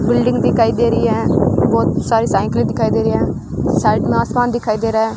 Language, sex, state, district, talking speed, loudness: Hindi, female, Rajasthan, Bikaner, 220 wpm, -16 LUFS